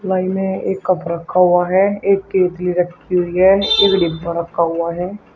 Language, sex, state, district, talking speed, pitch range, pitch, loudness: Hindi, male, Uttar Pradesh, Shamli, 190 wpm, 175-190 Hz, 180 Hz, -16 LUFS